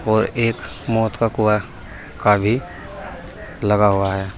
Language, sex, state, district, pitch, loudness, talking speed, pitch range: Hindi, male, Uttar Pradesh, Saharanpur, 105 Hz, -19 LUFS, 135 wpm, 95-115 Hz